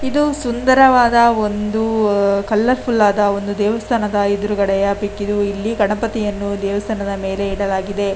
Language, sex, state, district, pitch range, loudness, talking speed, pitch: Kannada, female, Karnataka, Dakshina Kannada, 200-225 Hz, -17 LUFS, 50 wpm, 205 Hz